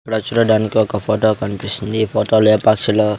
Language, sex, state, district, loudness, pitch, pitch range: Telugu, male, Andhra Pradesh, Sri Satya Sai, -16 LUFS, 110 Hz, 105-110 Hz